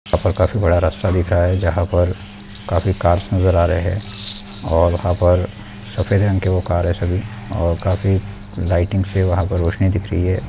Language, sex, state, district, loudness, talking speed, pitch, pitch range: Hindi, male, Chhattisgarh, Bastar, -18 LUFS, 200 wpm, 95 Hz, 90-100 Hz